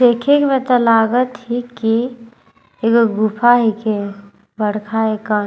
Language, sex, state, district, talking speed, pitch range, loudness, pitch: Sadri, female, Chhattisgarh, Jashpur, 130 wpm, 215-245 Hz, -16 LUFS, 230 Hz